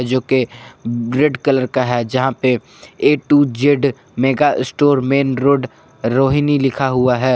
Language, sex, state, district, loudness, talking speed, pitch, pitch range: Hindi, male, Jharkhand, Garhwa, -16 LUFS, 145 wpm, 130 Hz, 125-140 Hz